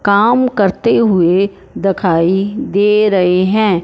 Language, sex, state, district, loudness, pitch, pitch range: Hindi, male, Punjab, Fazilka, -13 LUFS, 195 Hz, 185-210 Hz